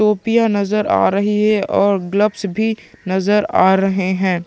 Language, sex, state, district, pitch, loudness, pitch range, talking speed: Hindi, male, Chhattisgarh, Sukma, 200 Hz, -16 LUFS, 190-210 Hz, 160 wpm